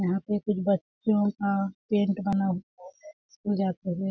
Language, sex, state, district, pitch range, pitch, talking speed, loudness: Hindi, female, Chhattisgarh, Balrampur, 190-205 Hz, 200 Hz, 175 wpm, -28 LUFS